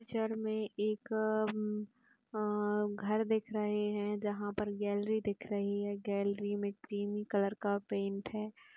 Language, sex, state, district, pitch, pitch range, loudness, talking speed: Hindi, female, Uttar Pradesh, Etah, 210 Hz, 205-215 Hz, -36 LUFS, 150 wpm